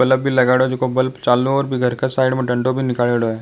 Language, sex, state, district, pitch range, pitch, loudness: Rajasthani, male, Rajasthan, Nagaur, 125-130 Hz, 130 Hz, -17 LUFS